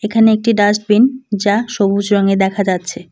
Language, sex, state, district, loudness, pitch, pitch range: Bengali, female, West Bengal, Cooch Behar, -14 LUFS, 205 Hz, 195-220 Hz